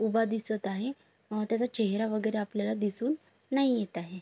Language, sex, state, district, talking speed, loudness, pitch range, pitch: Marathi, female, Maharashtra, Sindhudurg, 170 wpm, -31 LUFS, 210-235 Hz, 220 Hz